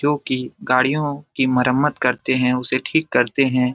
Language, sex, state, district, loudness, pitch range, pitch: Hindi, male, Bihar, Jamui, -19 LUFS, 125-145 Hz, 130 Hz